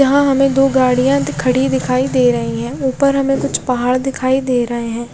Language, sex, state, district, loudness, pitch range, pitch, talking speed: Hindi, female, Odisha, Khordha, -15 LUFS, 250-270 Hz, 260 Hz, 200 wpm